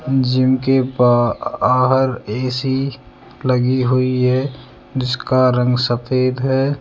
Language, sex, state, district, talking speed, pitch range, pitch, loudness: Hindi, male, Rajasthan, Jaipur, 95 wpm, 125-130 Hz, 130 Hz, -17 LUFS